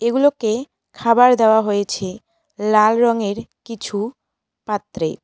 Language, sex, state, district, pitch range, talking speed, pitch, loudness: Bengali, female, West Bengal, Cooch Behar, 205-235 Hz, 90 wpm, 220 Hz, -18 LUFS